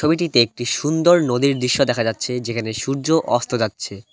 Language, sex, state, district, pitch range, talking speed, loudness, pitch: Bengali, male, West Bengal, Cooch Behar, 115-150 Hz, 160 wpm, -19 LUFS, 125 Hz